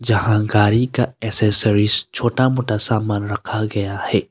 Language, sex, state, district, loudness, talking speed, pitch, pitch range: Hindi, male, Arunachal Pradesh, Longding, -18 LUFS, 140 wpm, 110 Hz, 105-120 Hz